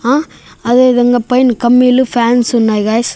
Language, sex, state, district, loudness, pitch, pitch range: Telugu, male, Andhra Pradesh, Annamaya, -11 LUFS, 245 Hz, 235-250 Hz